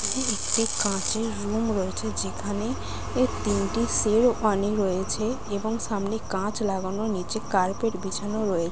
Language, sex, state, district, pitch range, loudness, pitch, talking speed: Bengali, female, West Bengal, Malda, 185-220 Hz, -26 LUFS, 205 Hz, 115 wpm